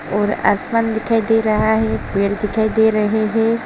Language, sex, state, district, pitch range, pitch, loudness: Hindi, female, Uttar Pradesh, Jalaun, 210-225 Hz, 220 Hz, -17 LUFS